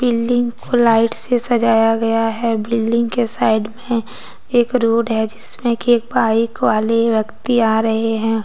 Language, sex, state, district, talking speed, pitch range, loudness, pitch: Hindi, female, Jharkhand, Deoghar, 165 wpm, 225-240 Hz, -17 LUFS, 230 Hz